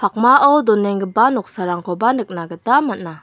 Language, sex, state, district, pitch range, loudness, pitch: Garo, female, Meghalaya, West Garo Hills, 180-250 Hz, -16 LUFS, 205 Hz